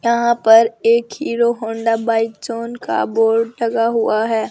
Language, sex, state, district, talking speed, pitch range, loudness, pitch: Hindi, female, Rajasthan, Jaipur, 160 wpm, 225-235 Hz, -17 LUFS, 230 Hz